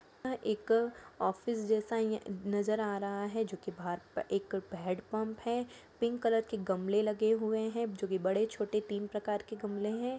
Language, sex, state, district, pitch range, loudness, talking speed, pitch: Hindi, female, Jharkhand, Jamtara, 200-225 Hz, -35 LUFS, 165 wpm, 215 Hz